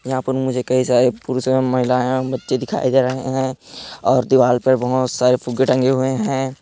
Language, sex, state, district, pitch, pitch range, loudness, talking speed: Chhattisgarhi, male, Chhattisgarh, Korba, 130 Hz, 125-130 Hz, -18 LUFS, 200 wpm